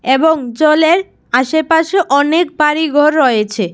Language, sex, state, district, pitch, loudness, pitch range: Bengali, female, Tripura, West Tripura, 305 Hz, -12 LUFS, 265-320 Hz